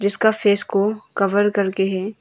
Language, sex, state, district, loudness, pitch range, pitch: Hindi, female, Arunachal Pradesh, Longding, -18 LUFS, 195-205 Hz, 200 Hz